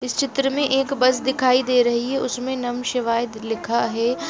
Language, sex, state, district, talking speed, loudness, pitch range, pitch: Hindi, female, Chhattisgarh, Raigarh, 210 wpm, -21 LUFS, 240-265 Hz, 250 Hz